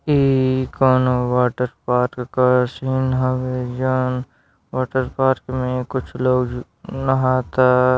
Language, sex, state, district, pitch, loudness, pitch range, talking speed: Bhojpuri, male, Uttar Pradesh, Deoria, 130 Hz, -19 LUFS, 125-130 Hz, 105 wpm